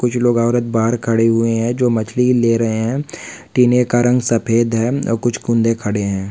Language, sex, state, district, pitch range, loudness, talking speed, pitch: Hindi, male, Andhra Pradesh, Visakhapatnam, 115-125 Hz, -16 LUFS, 210 wpm, 115 Hz